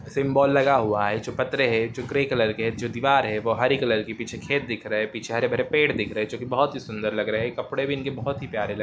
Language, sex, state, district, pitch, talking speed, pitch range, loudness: Hindi, male, Jharkhand, Jamtara, 120 Hz, 305 wpm, 110-140 Hz, -24 LUFS